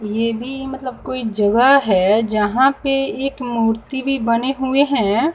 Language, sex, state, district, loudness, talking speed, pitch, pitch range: Hindi, female, Bihar, West Champaran, -17 LUFS, 155 wpm, 255 Hz, 225-270 Hz